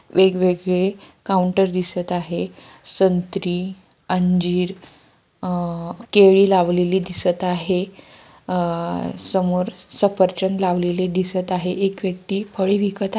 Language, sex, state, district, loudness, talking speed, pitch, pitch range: Marathi, female, Maharashtra, Pune, -20 LUFS, 85 wpm, 185 Hz, 180-190 Hz